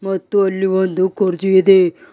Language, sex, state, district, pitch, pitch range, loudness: Kannada, male, Karnataka, Bidar, 190 Hz, 185-195 Hz, -15 LUFS